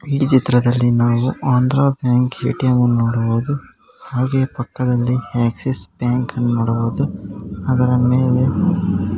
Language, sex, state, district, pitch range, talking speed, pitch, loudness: Kannada, male, Karnataka, Gulbarga, 120-130 Hz, 90 wpm, 125 Hz, -17 LUFS